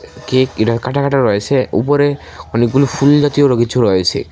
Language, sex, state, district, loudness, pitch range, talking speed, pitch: Bengali, male, Tripura, West Tripura, -14 LUFS, 120-140 Hz, 155 wpm, 130 Hz